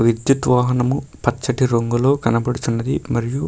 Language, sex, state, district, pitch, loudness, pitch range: Telugu, male, Karnataka, Bellary, 125 Hz, -19 LUFS, 115-130 Hz